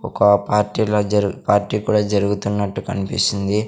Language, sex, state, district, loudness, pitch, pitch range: Telugu, male, Andhra Pradesh, Sri Satya Sai, -19 LUFS, 100 Hz, 100-105 Hz